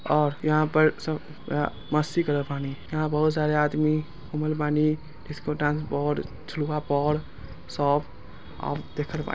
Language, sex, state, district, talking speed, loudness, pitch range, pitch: Angika, male, Bihar, Samastipur, 130 wpm, -26 LUFS, 145-155 Hz, 150 Hz